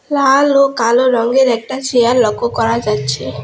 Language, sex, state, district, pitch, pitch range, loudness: Bengali, female, West Bengal, Alipurduar, 240 Hz, 225-270 Hz, -13 LUFS